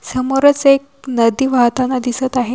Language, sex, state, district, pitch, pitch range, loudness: Marathi, female, Maharashtra, Washim, 260 Hz, 245-275 Hz, -15 LUFS